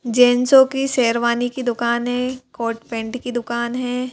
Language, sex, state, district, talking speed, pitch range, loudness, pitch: Hindi, female, Madhya Pradesh, Bhopal, 160 wpm, 235-255 Hz, -19 LUFS, 245 Hz